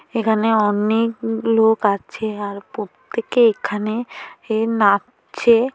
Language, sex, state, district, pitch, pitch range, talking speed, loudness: Bengali, female, West Bengal, Paschim Medinipur, 220 Hz, 210-230 Hz, 105 wpm, -19 LUFS